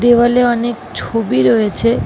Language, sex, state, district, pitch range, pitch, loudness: Bengali, female, West Bengal, Kolkata, 225-240 Hz, 235 Hz, -14 LUFS